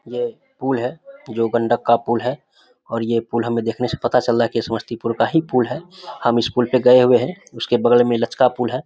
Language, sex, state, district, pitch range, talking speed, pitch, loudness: Hindi, male, Bihar, Samastipur, 115-125 Hz, 265 wpm, 120 Hz, -19 LUFS